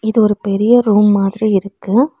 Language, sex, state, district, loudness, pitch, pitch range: Tamil, female, Tamil Nadu, Nilgiris, -14 LUFS, 210 Hz, 200-220 Hz